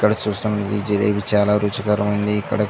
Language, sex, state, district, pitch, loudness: Telugu, male, Andhra Pradesh, Chittoor, 105 Hz, -20 LUFS